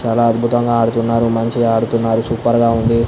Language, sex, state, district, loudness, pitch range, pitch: Telugu, male, Andhra Pradesh, Anantapur, -15 LUFS, 115-120 Hz, 115 Hz